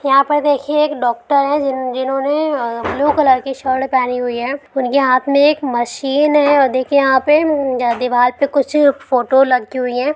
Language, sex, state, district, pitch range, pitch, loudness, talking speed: Hindi, female, Bihar, Lakhisarai, 255-290 Hz, 270 Hz, -15 LUFS, 190 wpm